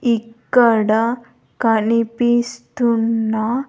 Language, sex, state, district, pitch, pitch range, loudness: Telugu, female, Andhra Pradesh, Sri Satya Sai, 230 Hz, 225-240 Hz, -17 LUFS